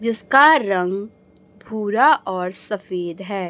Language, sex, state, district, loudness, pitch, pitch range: Hindi, female, Chhattisgarh, Raipur, -18 LUFS, 200 Hz, 185-220 Hz